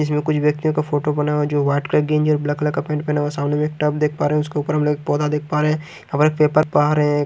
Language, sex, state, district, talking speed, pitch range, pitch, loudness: Hindi, male, Haryana, Jhajjar, 315 wpm, 145-150 Hz, 150 Hz, -19 LUFS